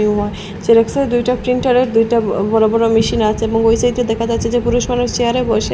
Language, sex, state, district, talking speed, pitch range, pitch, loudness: Bengali, female, Assam, Hailakandi, 210 wpm, 225-245 Hz, 230 Hz, -15 LUFS